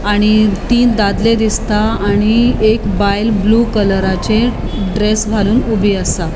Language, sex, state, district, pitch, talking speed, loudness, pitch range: Konkani, female, Goa, North and South Goa, 210 Hz, 125 wpm, -13 LUFS, 205-220 Hz